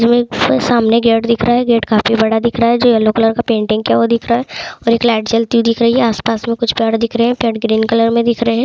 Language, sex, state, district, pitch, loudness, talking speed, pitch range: Hindi, female, Bihar, Bhagalpur, 230 Hz, -13 LUFS, 310 wpm, 225-235 Hz